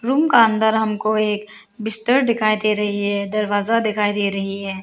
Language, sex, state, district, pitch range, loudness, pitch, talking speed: Hindi, female, Arunachal Pradesh, Lower Dibang Valley, 205-220 Hz, -19 LUFS, 215 Hz, 185 wpm